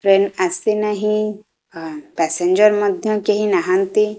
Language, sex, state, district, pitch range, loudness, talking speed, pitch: Odia, female, Odisha, Khordha, 185-210 Hz, -17 LUFS, 115 wpm, 205 Hz